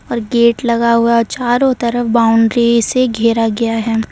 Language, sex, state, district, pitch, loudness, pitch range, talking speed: Hindi, female, Uttar Pradesh, Lalitpur, 235 Hz, -13 LUFS, 230-240 Hz, 160 wpm